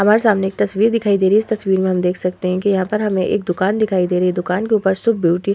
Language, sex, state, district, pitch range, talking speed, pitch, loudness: Hindi, female, Uttar Pradesh, Hamirpur, 180-210 Hz, 335 wpm, 195 Hz, -17 LUFS